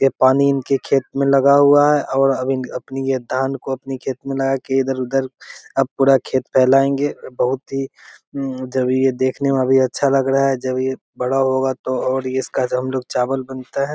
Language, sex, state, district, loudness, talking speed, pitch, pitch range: Hindi, male, Bihar, Begusarai, -18 LUFS, 200 wpm, 135 Hz, 130-135 Hz